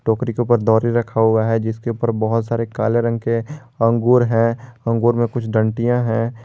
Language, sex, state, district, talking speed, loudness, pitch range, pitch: Hindi, male, Jharkhand, Garhwa, 195 wpm, -18 LUFS, 115-120 Hz, 115 Hz